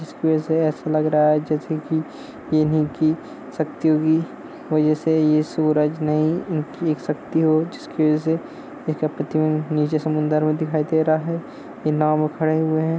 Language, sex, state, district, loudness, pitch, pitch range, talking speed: Hindi, male, Uttar Pradesh, Hamirpur, -21 LUFS, 155 Hz, 155-160 Hz, 185 wpm